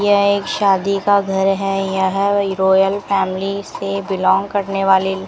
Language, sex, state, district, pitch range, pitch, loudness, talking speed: Hindi, female, Rajasthan, Bikaner, 190-200 Hz, 195 Hz, -17 LUFS, 160 wpm